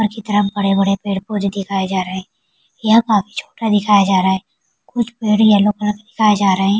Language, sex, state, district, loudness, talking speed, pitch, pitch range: Hindi, female, Bihar, Kishanganj, -16 LUFS, 220 wpm, 205 Hz, 195-215 Hz